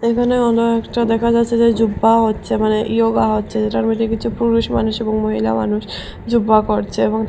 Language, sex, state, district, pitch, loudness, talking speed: Bengali, female, Assam, Hailakandi, 225 Hz, -16 LUFS, 180 wpm